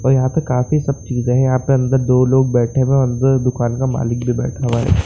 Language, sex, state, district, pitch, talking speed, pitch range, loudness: Hindi, male, Bihar, Saran, 130 Hz, 275 wpm, 120-130 Hz, -16 LUFS